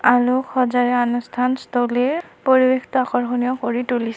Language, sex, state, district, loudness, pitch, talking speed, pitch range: Assamese, female, Assam, Kamrup Metropolitan, -19 LUFS, 250 Hz, 85 wpm, 245-255 Hz